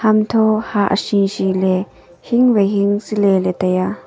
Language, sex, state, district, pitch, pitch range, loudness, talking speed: Wancho, female, Arunachal Pradesh, Longding, 200 Hz, 190-215 Hz, -16 LUFS, 135 wpm